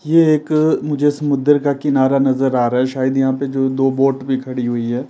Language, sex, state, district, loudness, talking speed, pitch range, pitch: Hindi, male, Himachal Pradesh, Shimla, -16 LUFS, 235 wpm, 130-145 Hz, 135 Hz